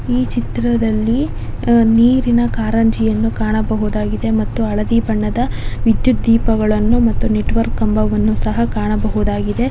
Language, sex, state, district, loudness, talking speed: Kannada, female, Karnataka, Dakshina Kannada, -16 LUFS, 80 wpm